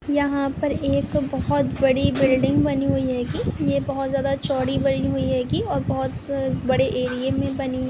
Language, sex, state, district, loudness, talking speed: Hindi, female, Goa, North and South Goa, -22 LUFS, 175 wpm